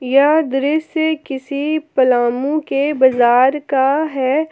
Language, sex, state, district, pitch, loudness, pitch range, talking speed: Hindi, female, Jharkhand, Palamu, 280 Hz, -16 LUFS, 260-310 Hz, 105 wpm